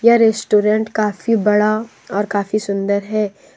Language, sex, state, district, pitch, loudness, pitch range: Hindi, female, Jharkhand, Deoghar, 215 Hz, -17 LUFS, 205-220 Hz